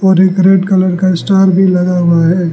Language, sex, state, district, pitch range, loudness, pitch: Hindi, male, Arunachal Pradesh, Lower Dibang Valley, 180-190 Hz, -10 LUFS, 185 Hz